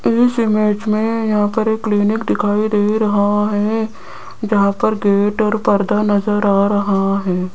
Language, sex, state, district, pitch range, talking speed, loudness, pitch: Hindi, female, Rajasthan, Jaipur, 205-220 Hz, 160 wpm, -16 LUFS, 210 Hz